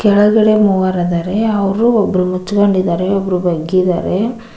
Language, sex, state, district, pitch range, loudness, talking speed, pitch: Kannada, female, Karnataka, Koppal, 185-210 Hz, -14 LUFS, 90 wpm, 195 Hz